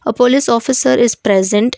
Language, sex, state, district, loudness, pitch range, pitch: English, female, Karnataka, Bangalore, -13 LUFS, 220-265 Hz, 245 Hz